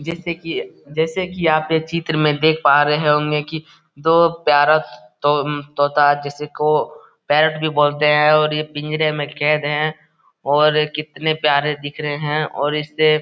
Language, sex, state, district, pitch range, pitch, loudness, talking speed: Hindi, male, Bihar, Lakhisarai, 145-155 Hz, 150 Hz, -18 LUFS, 175 wpm